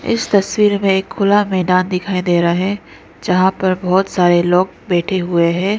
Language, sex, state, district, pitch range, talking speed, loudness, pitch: Hindi, female, Arunachal Pradesh, Lower Dibang Valley, 180-195 Hz, 185 wpm, -15 LUFS, 185 Hz